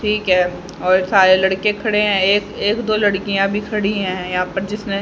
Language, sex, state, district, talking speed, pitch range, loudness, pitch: Hindi, female, Haryana, Rohtak, 205 wpm, 190-210 Hz, -17 LUFS, 200 Hz